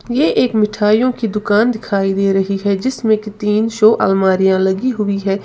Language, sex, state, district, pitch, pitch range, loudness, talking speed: Hindi, female, Uttar Pradesh, Lalitpur, 210 Hz, 195-225 Hz, -15 LUFS, 185 wpm